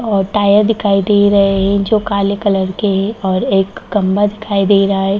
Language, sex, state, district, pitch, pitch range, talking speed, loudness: Hindi, female, Bihar, Darbhanga, 200 Hz, 195-205 Hz, 210 wpm, -13 LUFS